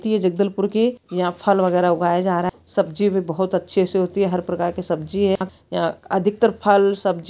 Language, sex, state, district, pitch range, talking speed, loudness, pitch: Hindi, female, Chhattisgarh, Bastar, 180-200 Hz, 205 wpm, -20 LUFS, 190 Hz